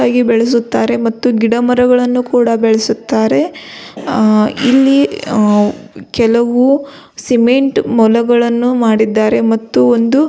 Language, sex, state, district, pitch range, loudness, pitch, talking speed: Kannada, female, Karnataka, Belgaum, 225-250 Hz, -12 LUFS, 235 Hz, 95 wpm